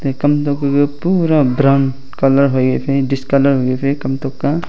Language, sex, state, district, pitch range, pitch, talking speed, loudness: Wancho, male, Arunachal Pradesh, Longding, 135-145 Hz, 140 Hz, 140 wpm, -15 LUFS